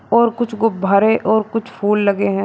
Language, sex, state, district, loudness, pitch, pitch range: Hindi, male, Uttar Pradesh, Shamli, -16 LUFS, 220 Hz, 200-225 Hz